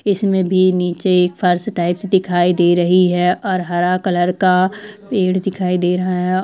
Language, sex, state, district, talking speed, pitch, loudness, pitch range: Hindi, female, Chhattisgarh, Bilaspur, 175 wpm, 185 Hz, -16 LUFS, 180-190 Hz